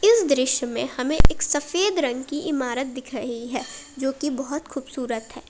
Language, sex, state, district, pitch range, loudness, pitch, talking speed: Hindi, female, Jharkhand, Palamu, 255-295 Hz, -25 LUFS, 270 Hz, 175 wpm